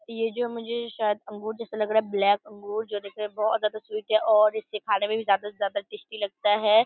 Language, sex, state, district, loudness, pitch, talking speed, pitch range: Hindi, female, Bihar, Purnia, -26 LUFS, 215 Hz, 260 wpm, 210-220 Hz